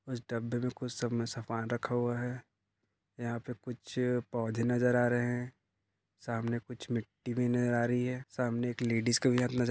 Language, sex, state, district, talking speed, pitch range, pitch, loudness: Hindi, male, Goa, North and South Goa, 205 wpm, 115-125 Hz, 120 Hz, -33 LUFS